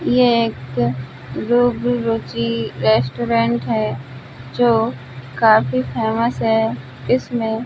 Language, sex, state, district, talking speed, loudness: Hindi, female, Uttar Pradesh, Budaun, 95 wpm, -18 LUFS